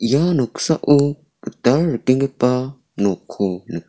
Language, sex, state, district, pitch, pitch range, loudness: Garo, male, Meghalaya, South Garo Hills, 130 Hz, 115-145 Hz, -19 LUFS